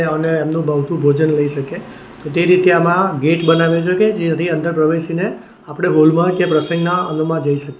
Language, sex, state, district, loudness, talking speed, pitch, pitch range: Gujarati, male, Gujarat, Valsad, -15 LUFS, 190 wpm, 165 Hz, 155-175 Hz